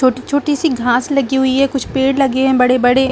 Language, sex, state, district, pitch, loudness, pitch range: Hindi, female, Chhattisgarh, Rajnandgaon, 265 Hz, -14 LUFS, 255-275 Hz